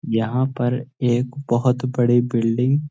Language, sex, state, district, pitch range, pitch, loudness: Hindi, male, Uttarakhand, Uttarkashi, 120-130 Hz, 125 Hz, -20 LUFS